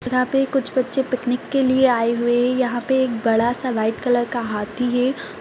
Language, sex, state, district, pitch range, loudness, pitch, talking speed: Kumaoni, female, Uttarakhand, Tehri Garhwal, 240-260 Hz, -20 LUFS, 250 Hz, 220 wpm